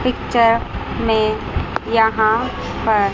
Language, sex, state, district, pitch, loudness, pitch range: Hindi, female, Chandigarh, Chandigarh, 220 Hz, -18 LUFS, 215-230 Hz